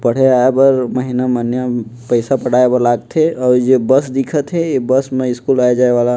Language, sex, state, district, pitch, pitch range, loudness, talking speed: Chhattisgarhi, male, Chhattisgarh, Jashpur, 125 Hz, 125-135 Hz, -14 LUFS, 225 wpm